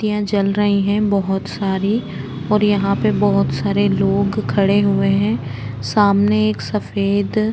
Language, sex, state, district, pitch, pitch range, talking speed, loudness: Hindi, female, Uttarakhand, Tehri Garhwal, 200 Hz, 135-205 Hz, 150 wpm, -17 LUFS